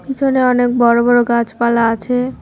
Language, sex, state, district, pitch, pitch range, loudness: Bengali, female, West Bengal, Cooch Behar, 245 Hz, 235-250 Hz, -14 LUFS